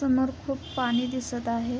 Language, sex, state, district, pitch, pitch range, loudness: Marathi, female, Maharashtra, Sindhudurg, 250 Hz, 240-260 Hz, -28 LUFS